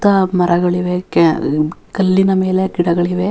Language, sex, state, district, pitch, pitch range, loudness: Kannada, female, Karnataka, Dharwad, 180 Hz, 175-190 Hz, -15 LUFS